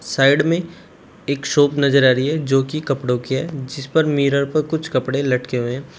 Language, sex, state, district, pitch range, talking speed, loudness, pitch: Hindi, male, Uttar Pradesh, Shamli, 130-155 Hz, 220 wpm, -18 LUFS, 140 Hz